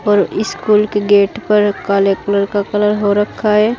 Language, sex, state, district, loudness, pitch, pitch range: Hindi, female, Uttar Pradesh, Saharanpur, -14 LUFS, 205 Hz, 200-210 Hz